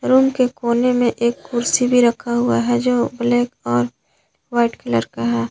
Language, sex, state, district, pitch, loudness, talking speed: Hindi, female, Jharkhand, Garhwa, 235 Hz, -18 LUFS, 185 wpm